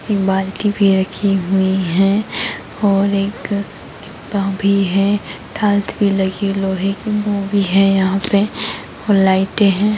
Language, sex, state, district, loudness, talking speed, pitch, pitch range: Hindi, female, Chhattisgarh, Raigarh, -16 LUFS, 140 wpm, 195 Hz, 195-205 Hz